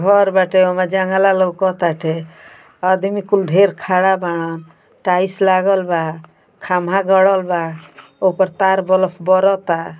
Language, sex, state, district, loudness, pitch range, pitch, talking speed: Bhojpuri, female, Uttar Pradesh, Ghazipur, -16 LUFS, 175-190 Hz, 185 Hz, 120 wpm